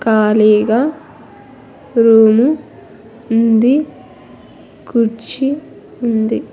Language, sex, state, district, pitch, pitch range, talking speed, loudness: Telugu, female, Andhra Pradesh, Sri Satya Sai, 230 Hz, 220-270 Hz, 55 wpm, -13 LUFS